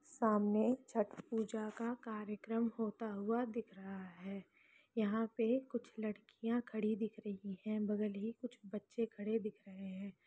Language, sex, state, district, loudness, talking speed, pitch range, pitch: Hindi, female, Chhattisgarh, Sukma, -41 LUFS, 150 wpm, 205-230 Hz, 220 Hz